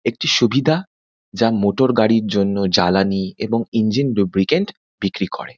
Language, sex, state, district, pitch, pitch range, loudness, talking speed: Bengali, male, West Bengal, Kolkata, 110 Hz, 100-120 Hz, -18 LUFS, 130 wpm